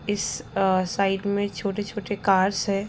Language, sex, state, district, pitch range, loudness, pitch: Hindi, female, Bihar, Sitamarhi, 195-205 Hz, -24 LUFS, 200 Hz